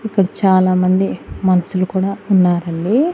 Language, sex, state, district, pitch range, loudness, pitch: Telugu, female, Andhra Pradesh, Annamaya, 185-195 Hz, -16 LUFS, 190 Hz